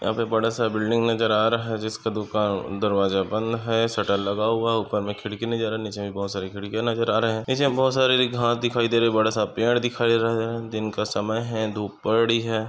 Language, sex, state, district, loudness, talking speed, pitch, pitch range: Hindi, male, Maharashtra, Chandrapur, -23 LUFS, 260 wpm, 110 Hz, 105-115 Hz